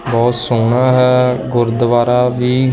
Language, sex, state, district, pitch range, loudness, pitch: Punjabi, male, Punjab, Kapurthala, 120-125 Hz, -13 LUFS, 125 Hz